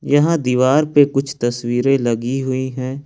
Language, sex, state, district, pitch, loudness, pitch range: Hindi, male, Jharkhand, Ranchi, 130 Hz, -17 LUFS, 125-140 Hz